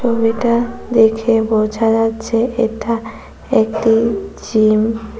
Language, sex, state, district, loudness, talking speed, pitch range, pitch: Bengali, female, West Bengal, Cooch Behar, -16 LUFS, 80 wpm, 220-230 Hz, 225 Hz